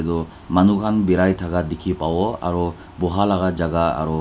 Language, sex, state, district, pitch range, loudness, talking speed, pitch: Nagamese, male, Nagaland, Dimapur, 85-95 Hz, -20 LUFS, 155 wpm, 90 Hz